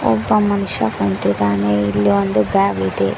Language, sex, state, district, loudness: Kannada, female, Karnataka, Koppal, -17 LUFS